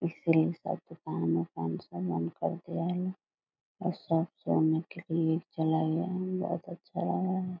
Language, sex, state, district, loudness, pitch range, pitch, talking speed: Hindi, female, Bihar, Purnia, -32 LUFS, 155-180 Hz, 165 Hz, 175 wpm